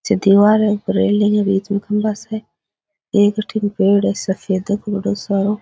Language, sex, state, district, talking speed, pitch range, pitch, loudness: Rajasthani, male, Rajasthan, Nagaur, 180 wpm, 200-215 Hz, 205 Hz, -17 LUFS